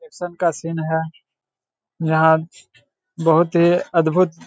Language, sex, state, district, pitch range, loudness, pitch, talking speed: Hindi, male, Bihar, Saharsa, 160-175 Hz, -18 LUFS, 165 Hz, 120 wpm